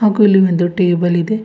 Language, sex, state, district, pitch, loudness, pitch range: Kannada, female, Karnataka, Bidar, 185 Hz, -13 LUFS, 175-210 Hz